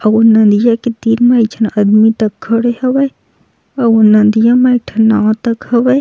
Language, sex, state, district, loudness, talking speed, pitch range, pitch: Chhattisgarhi, female, Chhattisgarh, Sukma, -11 LUFS, 190 wpm, 220-240 Hz, 225 Hz